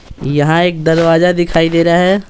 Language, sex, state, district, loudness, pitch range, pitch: Hindi, male, Bihar, Patna, -12 LUFS, 165-175 Hz, 165 Hz